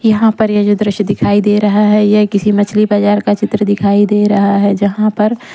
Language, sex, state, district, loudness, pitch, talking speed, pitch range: Hindi, female, Odisha, Nuapada, -12 LUFS, 210 Hz, 225 wpm, 205-210 Hz